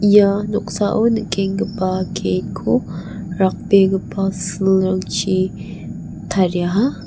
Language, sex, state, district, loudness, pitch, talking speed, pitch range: Garo, female, Meghalaya, West Garo Hills, -18 LUFS, 195 Hz, 70 wpm, 185-205 Hz